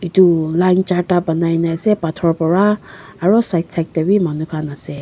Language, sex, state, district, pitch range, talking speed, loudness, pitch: Nagamese, female, Nagaland, Kohima, 160-185 Hz, 190 wpm, -16 LUFS, 170 Hz